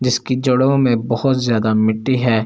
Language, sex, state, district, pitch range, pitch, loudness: Hindi, male, Delhi, New Delhi, 115-130 Hz, 125 Hz, -16 LUFS